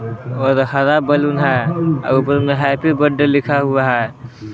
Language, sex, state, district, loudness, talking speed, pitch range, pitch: Hindi, male, Jharkhand, Palamu, -15 LUFS, 160 wpm, 130-145 Hz, 140 Hz